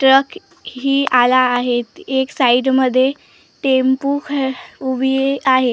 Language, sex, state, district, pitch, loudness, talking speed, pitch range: Marathi, female, Maharashtra, Gondia, 265 Hz, -16 LUFS, 115 wpm, 255-275 Hz